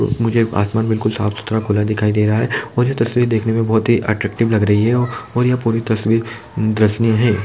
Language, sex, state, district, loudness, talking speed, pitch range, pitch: Hindi, male, Bihar, Jamui, -17 LUFS, 200 wpm, 110-115 Hz, 110 Hz